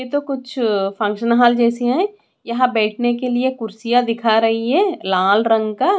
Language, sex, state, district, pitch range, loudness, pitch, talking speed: Hindi, female, Odisha, Khordha, 220-255 Hz, -17 LUFS, 235 Hz, 190 wpm